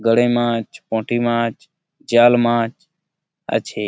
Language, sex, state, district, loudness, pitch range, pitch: Bengali, male, West Bengal, Malda, -18 LUFS, 115-165 Hz, 120 Hz